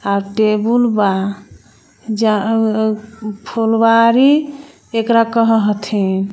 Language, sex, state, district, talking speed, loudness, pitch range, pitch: Bhojpuri, female, Jharkhand, Palamu, 75 wpm, -15 LUFS, 210-230 Hz, 220 Hz